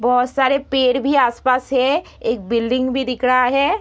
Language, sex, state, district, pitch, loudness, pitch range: Hindi, female, Bihar, Araria, 255 Hz, -17 LUFS, 250-265 Hz